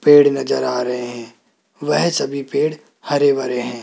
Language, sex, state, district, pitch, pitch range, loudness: Hindi, male, Rajasthan, Jaipur, 135 Hz, 125-145 Hz, -18 LUFS